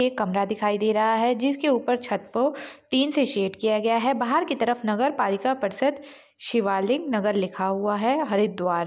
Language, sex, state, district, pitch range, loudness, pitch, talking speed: Kumaoni, female, Uttarakhand, Uttarkashi, 205-270 Hz, -24 LUFS, 230 Hz, 195 wpm